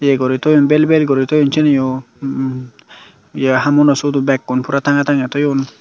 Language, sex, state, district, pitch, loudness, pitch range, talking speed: Chakma, male, Tripura, Dhalai, 140 Hz, -14 LUFS, 130-145 Hz, 175 wpm